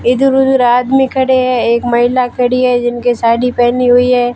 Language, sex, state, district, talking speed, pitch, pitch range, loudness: Hindi, female, Rajasthan, Barmer, 190 wpm, 245 Hz, 240-255 Hz, -11 LUFS